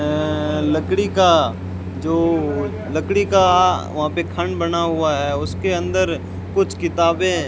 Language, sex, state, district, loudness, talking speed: Hindi, male, Rajasthan, Bikaner, -19 LUFS, 130 wpm